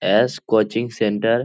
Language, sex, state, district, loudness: Hindi, male, Bihar, Jahanabad, -20 LUFS